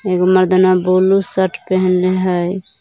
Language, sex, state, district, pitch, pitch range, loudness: Magahi, female, Jharkhand, Palamu, 185 Hz, 180-185 Hz, -14 LUFS